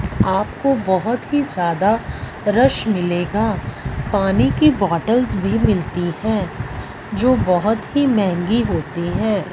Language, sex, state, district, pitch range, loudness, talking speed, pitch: Hindi, female, Punjab, Fazilka, 170-220 Hz, -18 LUFS, 115 wpm, 195 Hz